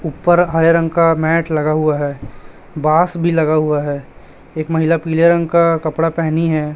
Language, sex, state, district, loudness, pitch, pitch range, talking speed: Hindi, male, Chhattisgarh, Raipur, -15 LUFS, 160 Hz, 155-165 Hz, 185 wpm